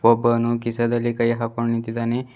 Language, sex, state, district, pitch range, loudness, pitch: Kannada, male, Karnataka, Bidar, 115-120 Hz, -22 LUFS, 115 Hz